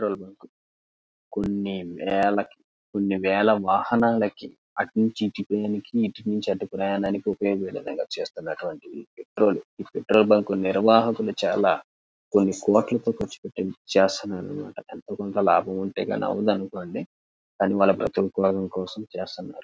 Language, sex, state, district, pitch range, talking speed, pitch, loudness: Telugu, male, Andhra Pradesh, Krishna, 95-105 Hz, 130 wpm, 100 Hz, -24 LUFS